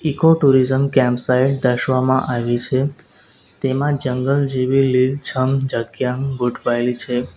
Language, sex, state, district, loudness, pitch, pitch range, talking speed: Gujarati, male, Gujarat, Valsad, -18 LUFS, 130 Hz, 125-135 Hz, 115 wpm